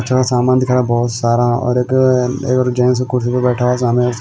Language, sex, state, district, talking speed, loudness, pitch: Hindi, male, Himachal Pradesh, Shimla, 170 wpm, -15 LUFS, 125 Hz